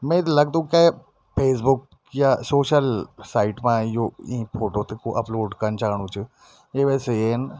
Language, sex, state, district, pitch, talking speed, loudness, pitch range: Garhwali, male, Uttarakhand, Tehri Garhwal, 120 Hz, 160 wpm, -22 LUFS, 110-140 Hz